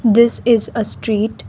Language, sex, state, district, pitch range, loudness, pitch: English, female, Assam, Kamrup Metropolitan, 220-235 Hz, -16 LUFS, 225 Hz